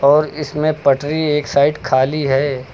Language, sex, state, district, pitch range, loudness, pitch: Hindi, male, Uttar Pradesh, Lucknow, 140-150 Hz, -16 LUFS, 145 Hz